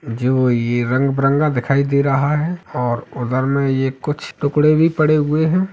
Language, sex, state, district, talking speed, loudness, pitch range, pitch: Hindi, male, Uttar Pradesh, Etah, 190 wpm, -17 LUFS, 130-150 Hz, 140 Hz